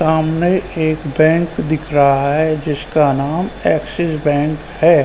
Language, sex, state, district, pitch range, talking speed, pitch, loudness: Hindi, male, Uttar Pradesh, Ghazipur, 145-165 Hz, 145 wpm, 155 Hz, -16 LUFS